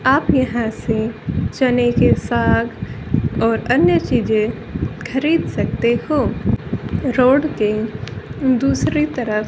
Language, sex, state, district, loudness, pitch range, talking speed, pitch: Hindi, female, Haryana, Rohtak, -18 LUFS, 220-265 Hz, 100 wpm, 245 Hz